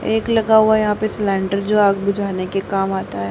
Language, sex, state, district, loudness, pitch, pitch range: Hindi, female, Haryana, Charkhi Dadri, -18 LUFS, 200 Hz, 195-215 Hz